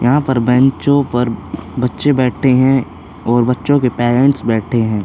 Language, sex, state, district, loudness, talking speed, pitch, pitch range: Hindi, male, Chhattisgarh, Korba, -14 LUFS, 155 wpm, 125 Hz, 115-135 Hz